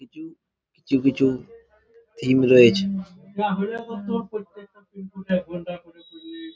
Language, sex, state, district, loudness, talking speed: Bengali, male, West Bengal, Jhargram, -22 LUFS, 55 wpm